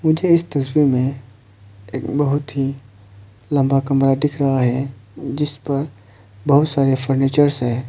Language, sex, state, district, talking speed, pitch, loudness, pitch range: Hindi, male, Arunachal Pradesh, Papum Pare, 135 wpm, 135 Hz, -18 LUFS, 120-145 Hz